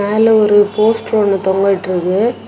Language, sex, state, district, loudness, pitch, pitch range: Tamil, female, Tamil Nadu, Kanyakumari, -13 LUFS, 205 Hz, 195-220 Hz